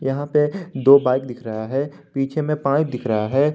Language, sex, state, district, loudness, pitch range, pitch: Hindi, male, Jharkhand, Garhwa, -20 LUFS, 130-150 Hz, 135 Hz